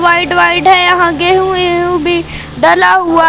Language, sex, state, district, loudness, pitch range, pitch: Hindi, female, Madhya Pradesh, Katni, -9 LUFS, 345-360 Hz, 350 Hz